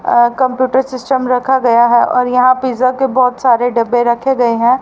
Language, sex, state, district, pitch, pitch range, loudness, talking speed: Hindi, female, Haryana, Rohtak, 250 Hz, 240-260 Hz, -12 LUFS, 200 wpm